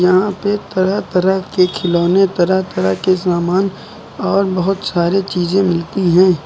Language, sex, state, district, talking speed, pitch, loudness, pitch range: Hindi, male, Uttar Pradesh, Lucknow, 150 wpm, 185 Hz, -15 LUFS, 175-195 Hz